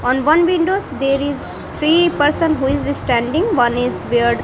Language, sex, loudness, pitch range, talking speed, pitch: English, female, -16 LUFS, 245-325 Hz, 190 wpm, 285 Hz